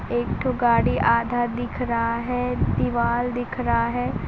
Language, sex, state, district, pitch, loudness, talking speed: Hindi, female, Jharkhand, Sahebganj, 235 Hz, -23 LUFS, 140 wpm